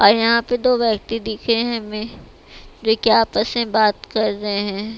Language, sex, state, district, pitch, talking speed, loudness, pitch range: Hindi, female, Bihar, West Champaran, 225 Hz, 180 wpm, -19 LUFS, 215-230 Hz